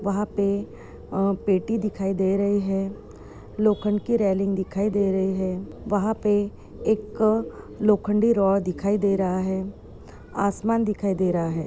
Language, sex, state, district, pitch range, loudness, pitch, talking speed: Hindi, female, Bihar, Purnia, 190-210 Hz, -24 LUFS, 200 Hz, 150 wpm